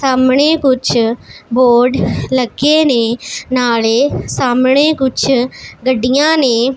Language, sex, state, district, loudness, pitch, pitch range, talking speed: Punjabi, female, Punjab, Pathankot, -13 LUFS, 255 Hz, 240-270 Hz, 90 wpm